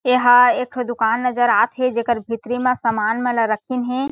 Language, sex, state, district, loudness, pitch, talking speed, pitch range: Chhattisgarhi, female, Chhattisgarh, Sarguja, -18 LUFS, 245 Hz, 220 wpm, 230-250 Hz